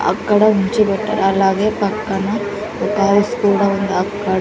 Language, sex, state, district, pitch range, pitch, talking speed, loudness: Telugu, female, Andhra Pradesh, Sri Satya Sai, 195-210 Hz, 205 Hz, 135 wpm, -16 LUFS